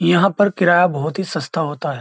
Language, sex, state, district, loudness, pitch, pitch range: Hindi, male, Uttar Pradesh, Jyotiba Phule Nagar, -17 LUFS, 175 Hz, 155-185 Hz